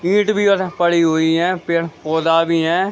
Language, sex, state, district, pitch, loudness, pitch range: Hindi, male, Jharkhand, Sahebganj, 170 Hz, -16 LUFS, 165-185 Hz